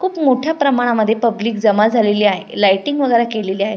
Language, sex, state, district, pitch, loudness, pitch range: Marathi, female, Maharashtra, Pune, 230 Hz, -15 LUFS, 210-260 Hz